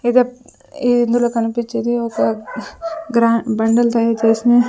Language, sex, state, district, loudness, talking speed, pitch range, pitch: Telugu, female, Andhra Pradesh, Sri Satya Sai, -17 LUFS, 115 wpm, 230-245 Hz, 235 Hz